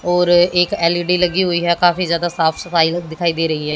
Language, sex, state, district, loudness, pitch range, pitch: Hindi, female, Haryana, Jhajjar, -16 LUFS, 165-175 Hz, 175 Hz